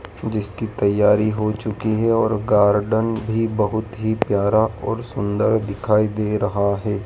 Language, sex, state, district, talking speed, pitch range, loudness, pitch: Hindi, male, Madhya Pradesh, Dhar, 145 wpm, 105-110 Hz, -20 LUFS, 105 Hz